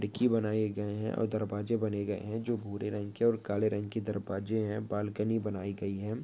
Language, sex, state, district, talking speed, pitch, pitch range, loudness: Hindi, male, Uttarakhand, Tehri Garhwal, 220 wpm, 105 Hz, 105-110 Hz, -33 LUFS